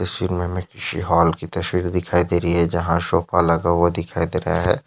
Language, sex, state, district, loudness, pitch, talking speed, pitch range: Hindi, male, Maharashtra, Aurangabad, -20 LUFS, 85 Hz, 185 wpm, 85-90 Hz